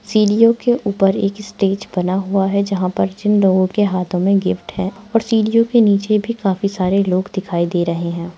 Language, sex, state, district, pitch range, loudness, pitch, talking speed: Hindi, female, Bihar, Araria, 185-210 Hz, -17 LUFS, 195 Hz, 210 wpm